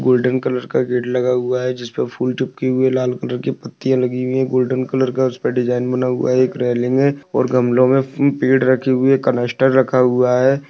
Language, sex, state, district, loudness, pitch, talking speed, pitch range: Hindi, male, Jharkhand, Sahebganj, -17 LUFS, 130 Hz, 230 wpm, 125-130 Hz